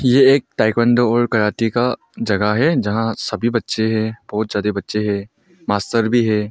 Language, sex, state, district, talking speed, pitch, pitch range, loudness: Hindi, male, Arunachal Pradesh, Longding, 175 wpm, 110 Hz, 105-120 Hz, -18 LUFS